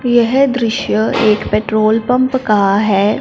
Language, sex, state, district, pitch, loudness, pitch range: Hindi, female, Punjab, Fazilka, 220 Hz, -13 LUFS, 210-250 Hz